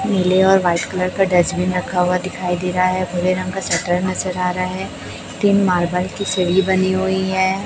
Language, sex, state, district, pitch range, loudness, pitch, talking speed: Hindi, male, Chhattisgarh, Raipur, 180-190 Hz, -18 LUFS, 185 Hz, 210 wpm